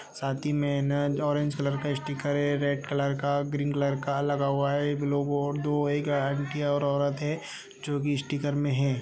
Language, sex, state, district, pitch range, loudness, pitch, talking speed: Hindi, male, Uttar Pradesh, Budaun, 140-145 Hz, -28 LUFS, 145 Hz, 220 wpm